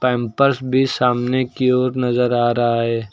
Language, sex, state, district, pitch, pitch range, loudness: Hindi, male, Uttar Pradesh, Lucknow, 125 Hz, 120-130 Hz, -18 LUFS